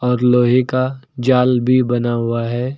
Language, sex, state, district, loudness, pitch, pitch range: Hindi, male, Uttar Pradesh, Lucknow, -16 LUFS, 125 Hz, 120-130 Hz